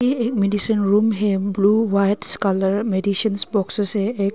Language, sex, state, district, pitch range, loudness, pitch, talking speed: Hindi, female, Arunachal Pradesh, Longding, 200-215 Hz, -18 LUFS, 205 Hz, 165 wpm